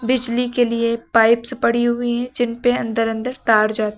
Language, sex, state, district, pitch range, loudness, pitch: Hindi, female, Uttar Pradesh, Lucknow, 225-245 Hz, -18 LUFS, 235 Hz